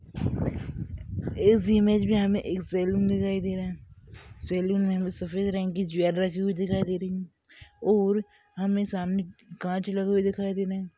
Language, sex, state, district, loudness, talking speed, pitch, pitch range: Hindi, male, Maharashtra, Aurangabad, -27 LUFS, 160 wpm, 190 Hz, 185-195 Hz